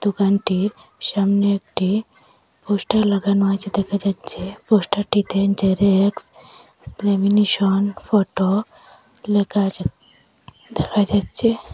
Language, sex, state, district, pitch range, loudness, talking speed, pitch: Bengali, female, Assam, Hailakandi, 195-205 Hz, -20 LUFS, 80 wpm, 200 Hz